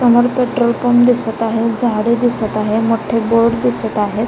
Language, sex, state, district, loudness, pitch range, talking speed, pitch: Marathi, female, Maharashtra, Chandrapur, -15 LUFS, 225-240 Hz, 155 wpm, 230 Hz